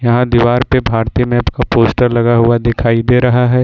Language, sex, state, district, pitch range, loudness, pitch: Hindi, male, Jharkhand, Ranchi, 115-125 Hz, -12 LUFS, 120 Hz